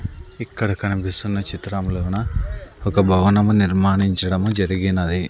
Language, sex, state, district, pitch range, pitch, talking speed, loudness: Telugu, male, Andhra Pradesh, Sri Satya Sai, 95-100 Hz, 95 Hz, 90 wpm, -19 LUFS